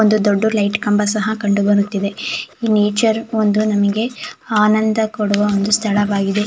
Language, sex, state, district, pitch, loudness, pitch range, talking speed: Kannada, female, Karnataka, Shimoga, 210 Hz, -16 LUFS, 205-215 Hz, 140 wpm